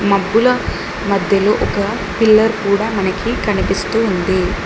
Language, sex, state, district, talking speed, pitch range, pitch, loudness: Telugu, female, Telangana, Mahabubabad, 105 wpm, 200-220 Hz, 200 Hz, -15 LUFS